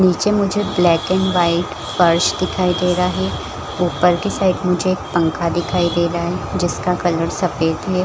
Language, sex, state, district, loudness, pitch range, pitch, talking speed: Hindi, female, Chhattisgarh, Balrampur, -18 LUFS, 170-185 Hz, 175 Hz, 165 wpm